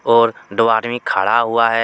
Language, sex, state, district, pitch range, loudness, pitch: Hindi, male, Jharkhand, Deoghar, 115-120 Hz, -16 LUFS, 115 Hz